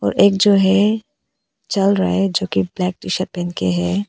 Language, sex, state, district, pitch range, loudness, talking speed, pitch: Hindi, female, Arunachal Pradesh, Papum Pare, 175-200 Hz, -17 LUFS, 220 wpm, 190 Hz